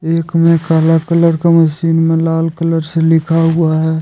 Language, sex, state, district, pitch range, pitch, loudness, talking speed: Hindi, male, Jharkhand, Deoghar, 160-165 Hz, 165 Hz, -12 LUFS, 195 wpm